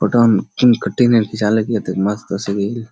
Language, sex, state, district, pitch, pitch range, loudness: Hindi, male, Bihar, Kishanganj, 110 Hz, 100-115 Hz, -16 LUFS